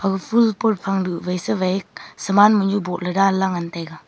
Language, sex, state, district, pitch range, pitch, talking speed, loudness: Wancho, female, Arunachal Pradesh, Longding, 180-205 Hz, 195 Hz, 190 wpm, -19 LUFS